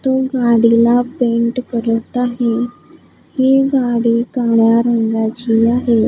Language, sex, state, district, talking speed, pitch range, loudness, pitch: Marathi, female, Maharashtra, Gondia, 100 wpm, 230-250 Hz, -15 LUFS, 235 Hz